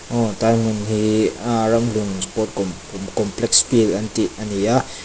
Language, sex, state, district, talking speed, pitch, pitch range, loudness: Mizo, male, Mizoram, Aizawl, 180 wpm, 110 Hz, 100-115 Hz, -19 LUFS